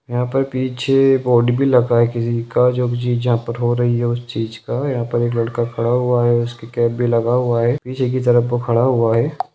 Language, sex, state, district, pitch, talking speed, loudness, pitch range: Hindi, male, Bihar, Lakhisarai, 120 Hz, 240 wpm, -17 LUFS, 120-125 Hz